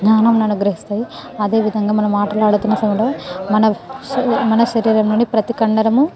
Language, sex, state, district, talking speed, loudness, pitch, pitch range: Telugu, female, Telangana, Nalgonda, 155 wpm, -16 LUFS, 220 Hz, 210-230 Hz